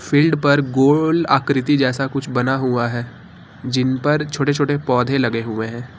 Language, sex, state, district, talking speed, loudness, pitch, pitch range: Hindi, male, Uttar Pradesh, Lucknow, 170 wpm, -18 LUFS, 135 Hz, 125-145 Hz